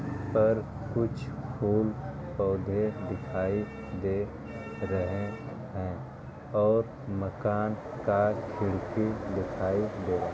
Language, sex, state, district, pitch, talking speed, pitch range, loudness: Hindi, male, Uttar Pradesh, Ghazipur, 105 Hz, 85 wpm, 95-115 Hz, -31 LUFS